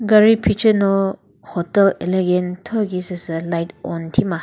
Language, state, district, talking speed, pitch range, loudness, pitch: Chakhesang, Nagaland, Dimapur, 120 wpm, 175-210 Hz, -18 LUFS, 185 Hz